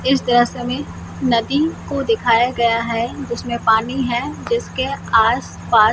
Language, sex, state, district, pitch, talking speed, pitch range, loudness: Hindi, female, Jharkhand, Jamtara, 240 Hz, 130 wpm, 230-260 Hz, -18 LUFS